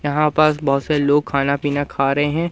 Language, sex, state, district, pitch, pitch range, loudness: Hindi, male, Madhya Pradesh, Umaria, 145 Hz, 140-150 Hz, -18 LUFS